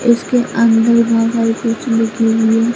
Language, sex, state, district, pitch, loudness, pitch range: Hindi, female, Bihar, Katihar, 230 Hz, -14 LUFS, 225-235 Hz